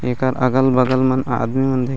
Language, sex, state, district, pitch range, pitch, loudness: Chhattisgarhi, male, Chhattisgarh, Raigarh, 125-130 Hz, 130 Hz, -17 LUFS